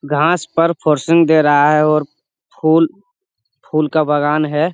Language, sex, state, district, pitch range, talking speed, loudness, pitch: Hindi, male, Bihar, Jamui, 150-165 Hz, 150 wpm, -14 LUFS, 155 Hz